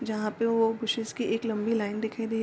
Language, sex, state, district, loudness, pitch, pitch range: Hindi, female, Bihar, Darbhanga, -29 LUFS, 225 Hz, 220-230 Hz